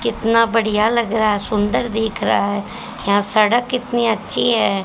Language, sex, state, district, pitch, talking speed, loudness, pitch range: Hindi, female, Haryana, Jhajjar, 225 Hz, 175 wpm, -17 LUFS, 210-235 Hz